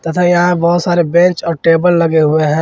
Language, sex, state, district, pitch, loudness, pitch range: Hindi, male, Jharkhand, Ranchi, 170 Hz, -12 LUFS, 165-175 Hz